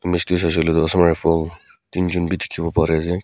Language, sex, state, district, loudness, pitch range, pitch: Nagamese, male, Nagaland, Kohima, -19 LUFS, 80-90 Hz, 85 Hz